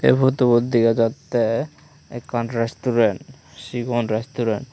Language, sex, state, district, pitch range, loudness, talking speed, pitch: Chakma, male, Tripura, Unakoti, 115-125 Hz, -21 LUFS, 100 wpm, 120 Hz